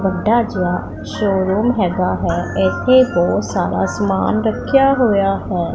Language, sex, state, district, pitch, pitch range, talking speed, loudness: Punjabi, female, Punjab, Pathankot, 195 Hz, 180-225 Hz, 125 wpm, -16 LUFS